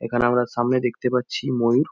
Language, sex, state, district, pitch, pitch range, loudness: Bengali, male, West Bengal, Jhargram, 120 Hz, 120-125 Hz, -22 LUFS